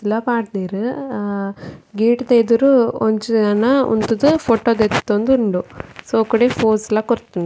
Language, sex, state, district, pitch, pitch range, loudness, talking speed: Tulu, female, Karnataka, Dakshina Kannada, 225 Hz, 210-240 Hz, -17 LUFS, 130 wpm